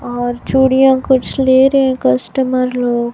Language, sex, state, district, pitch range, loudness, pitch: Hindi, male, Chhattisgarh, Raipur, 245-265 Hz, -13 LUFS, 260 Hz